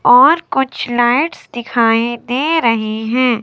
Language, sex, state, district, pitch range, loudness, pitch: Hindi, female, Himachal Pradesh, Shimla, 230-285 Hz, -14 LUFS, 240 Hz